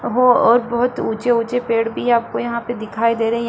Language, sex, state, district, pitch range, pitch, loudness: Hindi, female, Bihar, Supaul, 230-240 Hz, 235 Hz, -18 LUFS